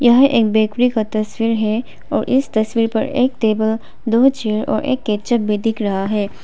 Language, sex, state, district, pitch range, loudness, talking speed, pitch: Hindi, female, Arunachal Pradesh, Papum Pare, 215-245 Hz, -17 LUFS, 195 wpm, 225 Hz